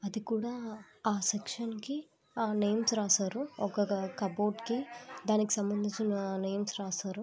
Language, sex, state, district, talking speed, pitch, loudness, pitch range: Telugu, female, Andhra Pradesh, Visakhapatnam, 125 wpm, 210 Hz, -33 LUFS, 200-230 Hz